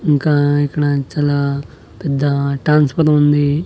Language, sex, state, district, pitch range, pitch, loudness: Telugu, male, Andhra Pradesh, Annamaya, 140-150 Hz, 145 Hz, -15 LUFS